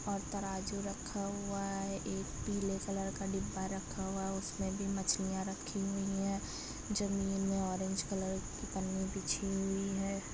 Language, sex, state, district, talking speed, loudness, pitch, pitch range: Hindi, female, Chhattisgarh, Raigarh, 165 wpm, -38 LUFS, 195 Hz, 190-195 Hz